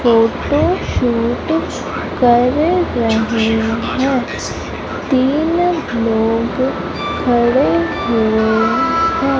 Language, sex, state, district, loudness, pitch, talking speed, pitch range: Hindi, female, Madhya Pradesh, Umaria, -16 LUFS, 245 Hz, 65 wpm, 225-305 Hz